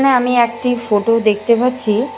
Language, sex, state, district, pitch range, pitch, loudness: Bengali, female, West Bengal, Malda, 220-250 Hz, 235 Hz, -15 LUFS